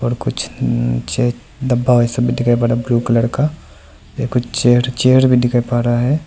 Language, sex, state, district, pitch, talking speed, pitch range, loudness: Hindi, male, Arunachal Pradesh, Lower Dibang Valley, 120 Hz, 190 wpm, 120-125 Hz, -16 LUFS